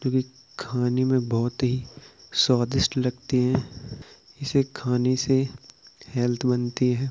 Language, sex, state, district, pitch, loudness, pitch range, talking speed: Hindi, male, Uttar Pradesh, Jalaun, 125 Hz, -25 LUFS, 125-130 Hz, 110 wpm